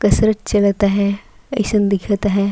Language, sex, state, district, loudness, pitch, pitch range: Sadri, female, Chhattisgarh, Jashpur, -17 LUFS, 200 Hz, 200-210 Hz